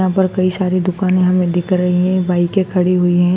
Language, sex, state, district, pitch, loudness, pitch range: Hindi, female, Madhya Pradesh, Dhar, 185 Hz, -15 LUFS, 180-185 Hz